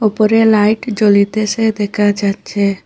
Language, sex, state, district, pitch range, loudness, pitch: Bengali, female, Assam, Hailakandi, 205-220 Hz, -13 LUFS, 210 Hz